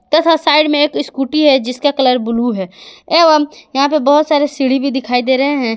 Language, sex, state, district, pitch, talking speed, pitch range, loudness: Hindi, female, Jharkhand, Garhwa, 280 Hz, 220 wpm, 260-300 Hz, -13 LUFS